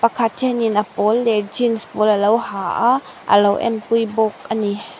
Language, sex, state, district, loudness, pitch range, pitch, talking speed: Mizo, female, Mizoram, Aizawl, -18 LUFS, 210-230 Hz, 225 Hz, 215 wpm